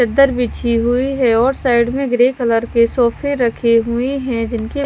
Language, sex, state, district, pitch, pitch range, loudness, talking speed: Hindi, female, Himachal Pradesh, Shimla, 240 Hz, 235-260 Hz, -16 LUFS, 160 wpm